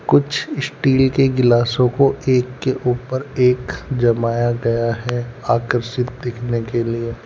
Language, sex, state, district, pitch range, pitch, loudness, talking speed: Hindi, male, Madhya Pradesh, Bhopal, 120-130 Hz, 125 Hz, -18 LUFS, 130 wpm